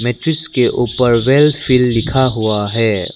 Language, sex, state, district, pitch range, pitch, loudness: Hindi, male, Arunachal Pradesh, Lower Dibang Valley, 115-130 Hz, 125 Hz, -14 LUFS